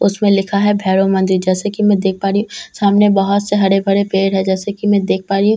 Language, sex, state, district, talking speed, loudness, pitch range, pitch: Hindi, female, Bihar, Katihar, 280 wpm, -14 LUFS, 195-205 Hz, 195 Hz